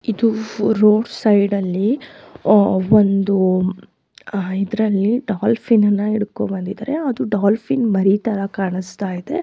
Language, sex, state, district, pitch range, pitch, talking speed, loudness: Kannada, female, Karnataka, Dharwad, 195-225 Hz, 210 Hz, 100 wpm, -18 LUFS